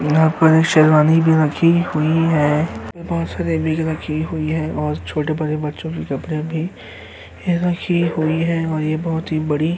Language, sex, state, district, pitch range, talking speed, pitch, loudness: Hindi, male, Uttar Pradesh, Hamirpur, 155-165 Hz, 165 wpm, 160 Hz, -18 LUFS